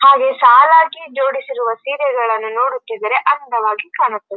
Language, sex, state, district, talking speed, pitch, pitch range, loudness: Kannada, female, Karnataka, Dharwad, 95 wpm, 255 Hz, 225-275 Hz, -14 LUFS